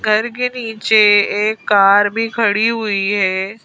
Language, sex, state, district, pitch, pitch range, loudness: Hindi, female, Madhya Pradesh, Bhopal, 215 Hz, 205-225 Hz, -14 LUFS